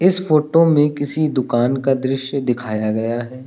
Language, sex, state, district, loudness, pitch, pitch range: Hindi, male, Uttar Pradesh, Lucknow, -18 LUFS, 135 Hz, 125-150 Hz